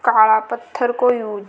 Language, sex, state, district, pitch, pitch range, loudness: Rajasthani, female, Rajasthan, Nagaur, 230 Hz, 220-245 Hz, -17 LUFS